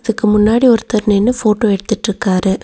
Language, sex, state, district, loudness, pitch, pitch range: Tamil, female, Tamil Nadu, Nilgiris, -13 LUFS, 215 Hz, 205-225 Hz